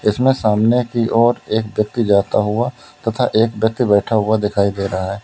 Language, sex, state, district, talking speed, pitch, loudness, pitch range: Hindi, male, Uttar Pradesh, Lalitpur, 195 wpm, 110 Hz, -17 LUFS, 105-120 Hz